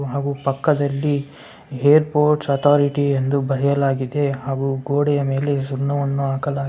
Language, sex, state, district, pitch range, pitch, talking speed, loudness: Kannada, male, Karnataka, Bellary, 135-145 Hz, 140 Hz, 90 wpm, -19 LUFS